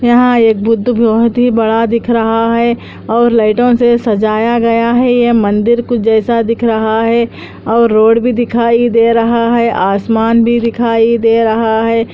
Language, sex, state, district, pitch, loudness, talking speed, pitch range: Hindi, female, Andhra Pradesh, Anantapur, 230 Hz, -11 LUFS, 185 wpm, 225-235 Hz